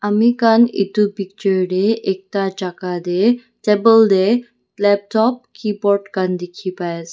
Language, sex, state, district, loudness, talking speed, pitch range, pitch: Nagamese, female, Nagaland, Dimapur, -17 LUFS, 135 wpm, 185-225 Hz, 200 Hz